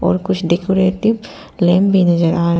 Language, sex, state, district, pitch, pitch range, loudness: Hindi, female, Arunachal Pradesh, Papum Pare, 185 Hz, 170-190 Hz, -15 LUFS